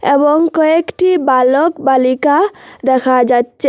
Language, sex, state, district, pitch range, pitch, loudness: Bengali, female, Assam, Hailakandi, 260-325 Hz, 285 Hz, -12 LUFS